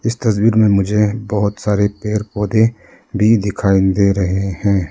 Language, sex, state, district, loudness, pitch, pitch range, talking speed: Hindi, male, Arunachal Pradesh, Lower Dibang Valley, -16 LUFS, 105 Hz, 100-110 Hz, 160 wpm